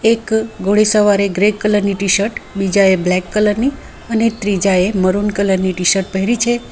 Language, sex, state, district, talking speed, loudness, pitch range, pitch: Gujarati, female, Gujarat, Valsad, 170 wpm, -15 LUFS, 190-220 Hz, 205 Hz